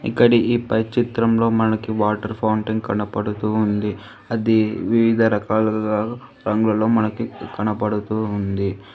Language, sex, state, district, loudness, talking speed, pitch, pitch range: Telugu, female, Telangana, Hyderabad, -20 LUFS, 105 wpm, 110 Hz, 105-115 Hz